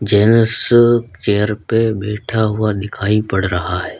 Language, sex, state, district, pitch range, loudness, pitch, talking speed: Hindi, male, Uttar Pradesh, Lalitpur, 100-110 Hz, -16 LUFS, 105 Hz, 135 wpm